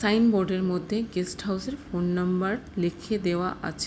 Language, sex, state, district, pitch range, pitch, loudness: Bengali, female, West Bengal, Jhargram, 180-215 Hz, 190 Hz, -27 LUFS